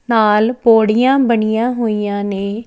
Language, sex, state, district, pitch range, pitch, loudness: Punjabi, female, Chandigarh, Chandigarh, 210-235 Hz, 220 Hz, -14 LUFS